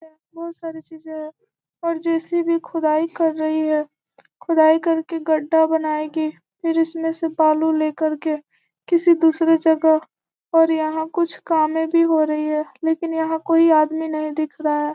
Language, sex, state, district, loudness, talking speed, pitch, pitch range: Hindi, female, Bihar, Gopalganj, -19 LUFS, 155 wpm, 320 Hz, 310-330 Hz